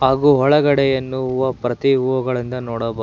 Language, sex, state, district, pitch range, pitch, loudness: Kannada, male, Karnataka, Bangalore, 125-135 Hz, 130 Hz, -18 LUFS